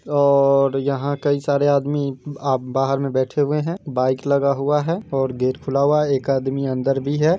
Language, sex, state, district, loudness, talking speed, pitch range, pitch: Hindi, male, Bihar, East Champaran, -20 LUFS, 195 wpm, 135-145 Hz, 140 Hz